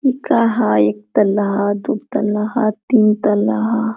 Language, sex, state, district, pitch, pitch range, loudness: Hindi, female, Jharkhand, Sahebganj, 210 Hz, 205-230 Hz, -16 LUFS